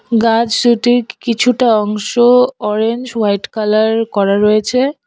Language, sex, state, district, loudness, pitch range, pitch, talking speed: Bengali, female, West Bengal, Alipurduar, -13 LUFS, 210-245 Hz, 225 Hz, 105 wpm